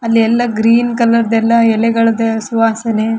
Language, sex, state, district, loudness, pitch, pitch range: Kannada, female, Karnataka, Raichur, -13 LUFS, 230 Hz, 225-230 Hz